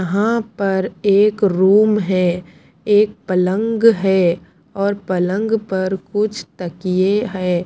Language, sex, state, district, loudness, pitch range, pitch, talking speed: Hindi, female, Punjab, Pathankot, -17 LUFS, 185-210 Hz, 195 Hz, 110 wpm